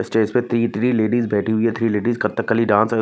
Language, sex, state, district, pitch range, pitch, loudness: Hindi, male, Maharashtra, Mumbai Suburban, 110-120 Hz, 115 Hz, -19 LUFS